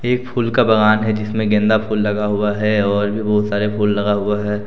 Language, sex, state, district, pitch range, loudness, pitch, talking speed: Hindi, male, Jharkhand, Deoghar, 105-110 Hz, -17 LUFS, 105 Hz, 245 wpm